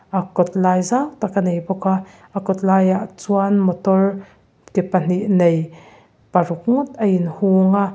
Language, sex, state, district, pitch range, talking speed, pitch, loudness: Mizo, female, Mizoram, Aizawl, 180-195 Hz, 160 wpm, 190 Hz, -18 LUFS